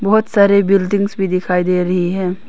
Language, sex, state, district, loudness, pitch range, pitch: Hindi, female, Arunachal Pradesh, Papum Pare, -15 LUFS, 180-200 Hz, 190 Hz